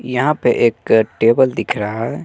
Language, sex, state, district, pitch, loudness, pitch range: Hindi, male, Bihar, West Champaran, 120 Hz, -16 LUFS, 115-130 Hz